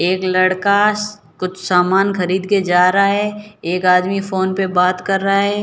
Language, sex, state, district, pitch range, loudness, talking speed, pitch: Hindi, female, Rajasthan, Barmer, 180-200 Hz, -16 LUFS, 190 wpm, 190 Hz